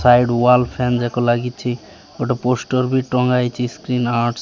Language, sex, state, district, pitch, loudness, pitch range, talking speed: Odia, male, Odisha, Malkangiri, 125 Hz, -18 LUFS, 120-125 Hz, 175 wpm